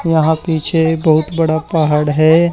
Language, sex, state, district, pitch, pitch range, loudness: Hindi, male, Haryana, Charkhi Dadri, 160 Hz, 155-165 Hz, -14 LUFS